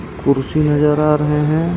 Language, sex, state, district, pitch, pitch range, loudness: Hindi, male, Jharkhand, Ranchi, 150 Hz, 150-155 Hz, -15 LUFS